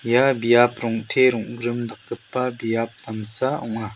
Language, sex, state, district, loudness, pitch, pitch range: Garo, male, Meghalaya, South Garo Hills, -22 LUFS, 120 Hz, 115-120 Hz